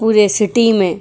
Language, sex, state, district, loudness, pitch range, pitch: Hindi, female, Uttar Pradesh, Jyotiba Phule Nagar, -13 LUFS, 200-225 Hz, 210 Hz